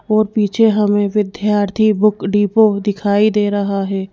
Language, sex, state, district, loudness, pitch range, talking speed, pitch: Hindi, female, Madhya Pradesh, Bhopal, -15 LUFS, 200-215 Hz, 145 wpm, 205 Hz